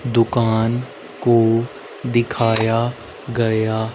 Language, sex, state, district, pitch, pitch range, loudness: Hindi, male, Haryana, Rohtak, 115 Hz, 115-120 Hz, -18 LUFS